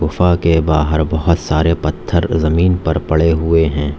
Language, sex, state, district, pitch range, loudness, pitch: Hindi, male, Uttar Pradesh, Lalitpur, 80-85 Hz, -15 LUFS, 80 Hz